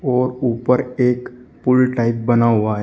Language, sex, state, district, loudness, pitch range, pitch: Hindi, male, Uttar Pradesh, Shamli, -17 LUFS, 115-125 Hz, 125 Hz